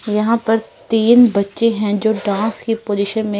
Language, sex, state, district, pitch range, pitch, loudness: Hindi, female, Punjab, Fazilka, 205-225 Hz, 220 Hz, -16 LUFS